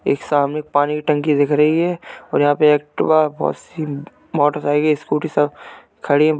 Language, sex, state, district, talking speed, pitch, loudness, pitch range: Hindi, male, Uttar Pradesh, Jalaun, 180 wpm, 150 Hz, -18 LUFS, 145-155 Hz